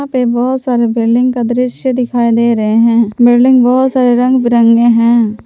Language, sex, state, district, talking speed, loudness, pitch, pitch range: Hindi, female, Jharkhand, Palamu, 145 wpm, -10 LUFS, 240 Hz, 235-250 Hz